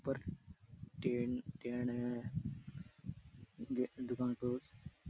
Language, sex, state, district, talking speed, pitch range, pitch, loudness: Rajasthani, male, Rajasthan, Churu, 105 wpm, 120-130 Hz, 125 Hz, -42 LUFS